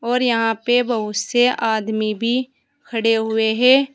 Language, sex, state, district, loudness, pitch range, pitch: Hindi, female, Uttar Pradesh, Saharanpur, -18 LUFS, 220-245 Hz, 230 Hz